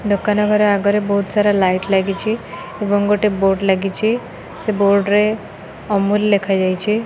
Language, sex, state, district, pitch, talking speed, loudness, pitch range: Odia, female, Odisha, Khordha, 205 Hz, 145 wpm, -17 LUFS, 195-210 Hz